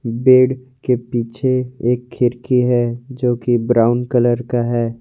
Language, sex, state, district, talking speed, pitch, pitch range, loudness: Hindi, male, Jharkhand, Garhwa, 145 wpm, 125 Hz, 120-125 Hz, -17 LUFS